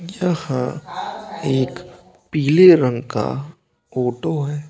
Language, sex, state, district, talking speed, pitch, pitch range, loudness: Hindi, male, Bihar, Begusarai, 90 wpm, 150 Hz, 130-175 Hz, -19 LUFS